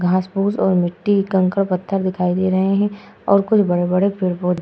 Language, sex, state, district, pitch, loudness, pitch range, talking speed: Hindi, female, Uttar Pradesh, Hamirpur, 190 Hz, -18 LUFS, 180-200 Hz, 210 wpm